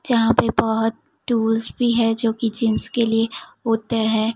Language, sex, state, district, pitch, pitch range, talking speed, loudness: Hindi, female, Gujarat, Gandhinagar, 225 Hz, 225-230 Hz, 165 wpm, -19 LUFS